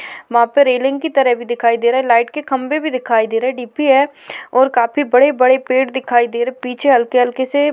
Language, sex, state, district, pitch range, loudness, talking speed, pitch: Hindi, female, Maharashtra, Chandrapur, 240-275 Hz, -15 LUFS, 255 wpm, 255 Hz